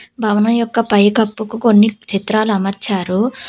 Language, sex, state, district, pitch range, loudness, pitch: Telugu, female, Telangana, Hyderabad, 205-225 Hz, -15 LUFS, 215 Hz